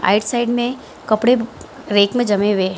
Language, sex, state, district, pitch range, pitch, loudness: Hindi, female, Bihar, Gaya, 205-240 Hz, 225 Hz, -17 LUFS